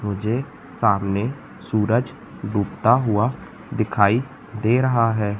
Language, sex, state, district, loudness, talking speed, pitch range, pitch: Hindi, male, Madhya Pradesh, Katni, -21 LUFS, 100 wpm, 105-120 Hz, 110 Hz